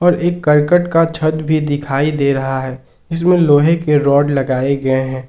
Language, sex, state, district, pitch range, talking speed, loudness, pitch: Hindi, male, Jharkhand, Ranchi, 135-165 Hz, 195 wpm, -14 LUFS, 145 Hz